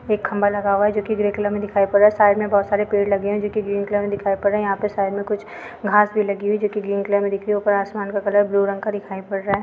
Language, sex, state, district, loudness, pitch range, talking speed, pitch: Hindi, female, Chhattisgarh, Bilaspur, -20 LUFS, 200-210 Hz, 350 wpm, 205 Hz